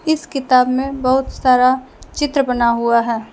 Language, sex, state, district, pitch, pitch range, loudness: Hindi, female, Jharkhand, Deoghar, 255 Hz, 245-275 Hz, -16 LUFS